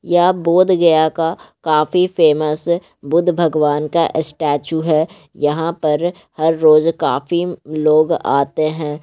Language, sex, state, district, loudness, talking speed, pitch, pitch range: Magahi, male, Bihar, Gaya, -16 LUFS, 135 wpm, 160 Hz, 155-170 Hz